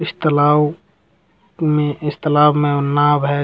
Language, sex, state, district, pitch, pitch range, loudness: Hindi, male, Bihar, Jamui, 150 Hz, 145-155 Hz, -16 LUFS